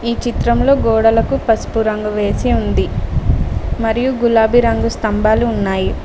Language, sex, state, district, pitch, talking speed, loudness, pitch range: Telugu, female, Telangana, Mahabubabad, 225 Hz, 120 wpm, -15 LUFS, 215-235 Hz